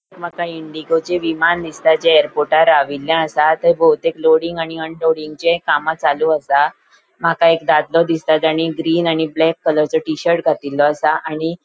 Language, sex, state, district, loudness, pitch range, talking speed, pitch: Konkani, female, Goa, North and South Goa, -16 LUFS, 155-165 Hz, 160 wpm, 160 Hz